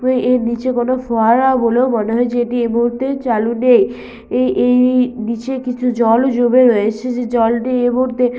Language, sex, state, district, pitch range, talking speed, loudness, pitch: Bengali, female, West Bengal, Malda, 235-255 Hz, 165 wpm, -15 LUFS, 245 Hz